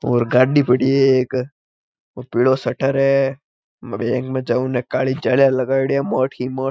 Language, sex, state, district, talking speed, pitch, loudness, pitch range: Marwari, male, Rajasthan, Nagaur, 160 wpm, 130 Hz, -18 LUFS, 125-135 Hz